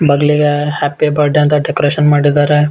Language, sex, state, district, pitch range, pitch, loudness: Kannada, male, Karnataka, Bellary, 145-150 Hz, 150 Hz, -12 LUFS